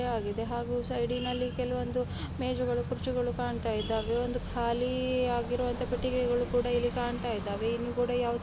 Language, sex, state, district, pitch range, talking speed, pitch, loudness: Kannada, female, Karnataka, Bellary, 225-245 Hz, 140 wpm, 240 Hz, -31 LUFS